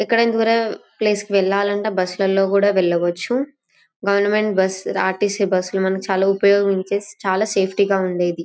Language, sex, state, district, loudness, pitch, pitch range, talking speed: Telugu, female, Andhra Pradesh, Anantapur, -19 LUFS, 200 Hz, 190-205 Hz, 170 wpm